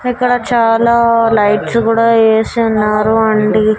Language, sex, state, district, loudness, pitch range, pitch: Telugu, female, Andhra Pradesh, Annamaya, -11 LUFS, 215-235 Hz, 225 Hz